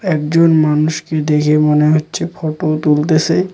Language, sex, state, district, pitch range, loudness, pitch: Bengali, male, West Bengal, Cooch Behar, 150-160 Hz, -14 LUFS, 155 Hz